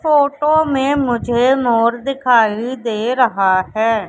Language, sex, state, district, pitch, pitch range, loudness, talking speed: Hindi, female, Madhya Pradesh, Katni, 245 Hz, 225-275 Hz, -15 LUFS, 120 wpm